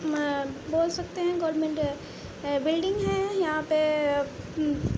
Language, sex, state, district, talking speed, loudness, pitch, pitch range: Hindi, female, Uttar Pradesh, Budaun, 145 wpm, -28 LUFS, 310 Hz, 295-345 Hz